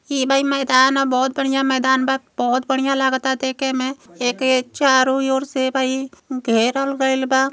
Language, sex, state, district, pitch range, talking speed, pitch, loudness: Bhojpuri, female, Uttar Pradesh, Gorakhpur, 260-270 Hz, 175 wpm, 265 Hz, -18 LUFS